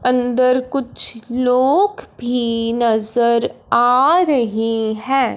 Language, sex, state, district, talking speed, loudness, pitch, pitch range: Hindi, female, Punjab, Fazilka, 90 wpm, -17 LUFS, 245 Hz, 230-255 Hz